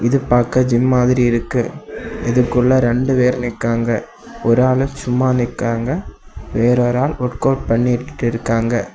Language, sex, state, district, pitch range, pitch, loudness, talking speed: Tamil, male, Tamil Nadu, Kanyakumari, 120-130 Hz, 125 Hz, -17 LUFS, 135 wpm